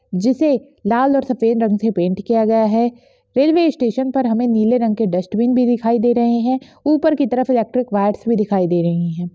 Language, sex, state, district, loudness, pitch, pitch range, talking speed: Hindi, female, Bihar, Begusarai, -17 LUFS, 235 Hz, 220-255 Hz, 210 wpm